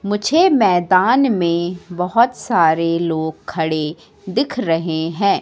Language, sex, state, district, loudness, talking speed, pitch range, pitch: Hindi, female, Madhya Pradesh, Katni, -17 LUFS, 110 wpm, 165-215 Hz, 180 Hz